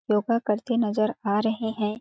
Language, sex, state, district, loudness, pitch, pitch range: Hindi, female, Chhattisgarh, Balrampur, -25 LUFS, 215 Hz, 210-230 Hz